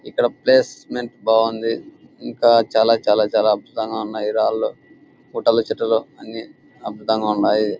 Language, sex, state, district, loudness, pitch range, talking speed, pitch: Telugu, male, Andhra Pradesh, Anantapur, -19 LUFS, 110-115 Hz, 110 wpm, 110 Hz